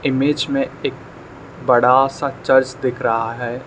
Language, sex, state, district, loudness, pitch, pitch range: Hindi, male, Arunachal Pradesh, Lower Dibang Valley, -18 LUFS, 130 Hz, 120-135 Hz